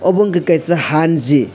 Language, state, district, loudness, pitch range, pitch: Kokborok, Tripura, West Tripura, -14 LUFS, 155-175 Hz, 165 Hz